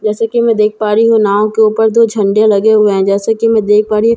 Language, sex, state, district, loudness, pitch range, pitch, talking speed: Hindi, female, Bihar, Katihar, -11 LUFS, 210-225 Hz, 215 Hz, 305 wpm